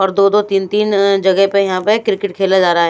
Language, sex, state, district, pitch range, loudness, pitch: Hindi, female, Bihar, Patna, 190-200 Hz, -14 LUFS, 195 Hz